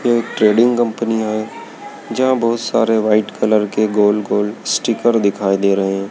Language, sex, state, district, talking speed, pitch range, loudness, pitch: Hindi, male, Madhya Pradesh, Dhar, 165 wpm, 105-115 Hz, -16 LUFS, 110 Hz